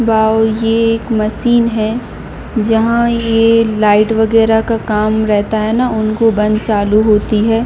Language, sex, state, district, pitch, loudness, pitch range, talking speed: Hindi, female, Jharkhand, Jamtara, 220 Hz, -13 LUFS, 215-230 Hz, 125 wpm